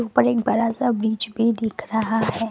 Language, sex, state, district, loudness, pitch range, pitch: Hindi, female, Assam, Kamrup Metropolitan, -22 LUFS, 220-230 Hz, 225 Hz